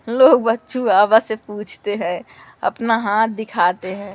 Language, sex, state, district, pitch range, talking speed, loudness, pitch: Hindi, female, Madhya Pradesh, Umaria, 200-225 Hz, 130 wpm, -18 LUFS, 215 Hz